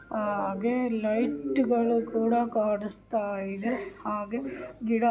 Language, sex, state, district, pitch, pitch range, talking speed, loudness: Kannada, female, Karnataka, Gulbarga, 225 Hz, 210-235 Hz, 105 wpm, -29 LUFS